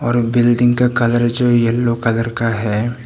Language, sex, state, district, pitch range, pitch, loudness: Hindi, male, Arunachal Pradesh, Papum Pare, 115-120 Hz, 120 Hz, -15 LUFS